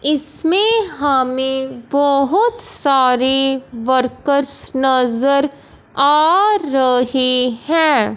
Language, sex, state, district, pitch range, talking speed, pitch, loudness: Hindi, male, Punjab, Fazilka, 255-300 Hz, 65 wpm, 270 Hz, -15 LUFS